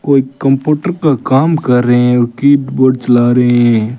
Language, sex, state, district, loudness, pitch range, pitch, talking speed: Hindi, male, Rajasthan, Bikaner, -11 LUFS, 120-140 Hz, 130 Hz, 180 wpm